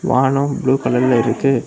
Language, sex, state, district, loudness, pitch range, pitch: Tamil, male, Tamil Nadu, Kanyakumari, -16 LUFS, 125-135 Hz, 130 Hz